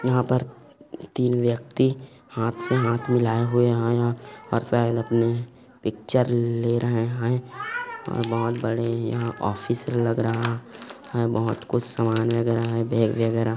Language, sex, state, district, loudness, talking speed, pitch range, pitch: Hindi, male, Chhattisgarh, Korba, -24 LUFS, 140 wpm, 115-120 Hz, 120 Hz